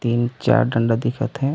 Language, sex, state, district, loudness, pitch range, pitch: Chhattisgarhi, male, Chhattisgarh, Raigarh, -20 LUFS, 115-135 Hz, 120 Hz